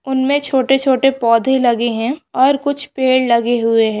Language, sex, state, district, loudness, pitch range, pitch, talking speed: Hindi, female, Maharashtra, Solapur, -15 LUFS, 235-270 Hz, 260 Hz, 180 wpm